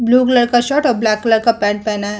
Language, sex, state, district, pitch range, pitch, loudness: Hindi, female, Uttar Pradesh, Muzaffarnagar, 215-245 Hz, 230 Hz, -14 LUFS